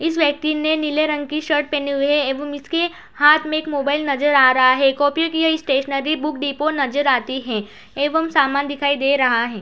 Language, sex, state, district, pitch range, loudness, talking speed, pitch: Hindi, female, Uttar Pradesh, Budaun, 275-305 Hz, -18 LUFS, 220 wpm, 290 Hz